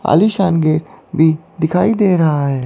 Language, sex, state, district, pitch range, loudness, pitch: Hindi, female, Chandigarh, Chandigarh, 155-185 Hz, -14 LUFS, 160 Hz